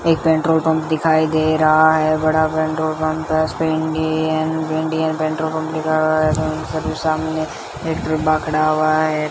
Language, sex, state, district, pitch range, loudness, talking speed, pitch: Hindi, female, Rajasthan, Bikaner, 155-160 Hz, -18 LUFS, 175 wpm, 155 Hz